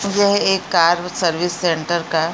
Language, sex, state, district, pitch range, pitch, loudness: Hindi, female, Uttarakhand, Uttarkashi, 165-185 Hz, 175 Hz, -17 LUFS